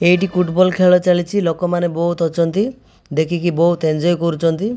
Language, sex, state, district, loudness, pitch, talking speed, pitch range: Odia, male, Odisha, Malkangiri, -16 LUFS, 175 Hz, 140 wpm, 165-180 Hz